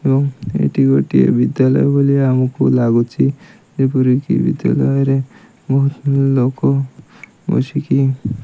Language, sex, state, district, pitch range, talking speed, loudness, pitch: Odia, male, Odisha, Malkangiri, 130-140 Hz, 90 wpm, -15 LUFS, 135 Hz